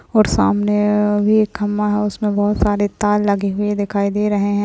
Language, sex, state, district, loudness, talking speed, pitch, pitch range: Hindi, female, Bihar, Madhepura, -17 LUFS, 205 wpm, 205 Hz, 205-210 Hz